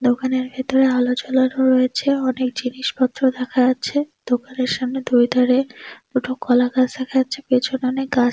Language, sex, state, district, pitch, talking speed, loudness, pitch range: Bengali, female, West Bengal, Dakshin Dinajpur, 255 Hz, 150 wpm, -19 LUFS, 250-260 Hz